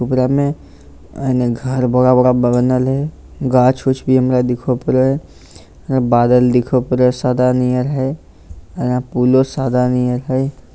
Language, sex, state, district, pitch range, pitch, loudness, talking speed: Maithili, male, Bihar, Lakhisarai, 125-130 Hz, 125 Hz, -15 LUFS, 150 wpm